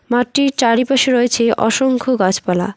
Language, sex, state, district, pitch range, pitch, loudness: Bengali, female, West Bengal, Cooch Behar, 220-260 Hz, 245 Hz, -15 LUFS